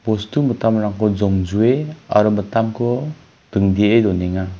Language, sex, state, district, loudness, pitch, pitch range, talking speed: Garo, male, Meghalaya, West Garo Hills, -18 LUFS, 110 Hz, 100-120 Hz, 90 wpm